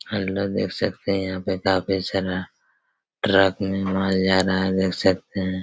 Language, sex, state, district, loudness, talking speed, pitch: Hindi, male, Chhattisgarh, Raigarh, -22 LUFS, 180 wpm, 95 Hz